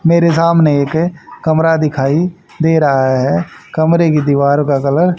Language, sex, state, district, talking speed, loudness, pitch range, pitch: Hindi, male, Haryana, Jhajjar, 160 wpm, -13 LUFS, 140-170 Hz, 160 Hz